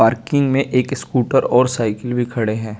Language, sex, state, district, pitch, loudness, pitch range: Hindi, male, Chandigarh, Chandigarh, 125 Hz, -18 LUFS, 115-130 Hz